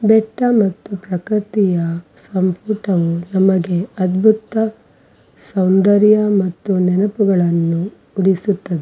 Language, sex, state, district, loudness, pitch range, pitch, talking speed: Kannada, female, Karnataka, Dakshina Kannada, -16 LUFS, 180-210 Hz, 195 Hz, 80 wpm